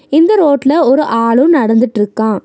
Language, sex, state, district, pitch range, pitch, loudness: Tamil, female, Tamil Nadu, Nilgiris, 225-305 Hz, 265 Hz, -11 LUFS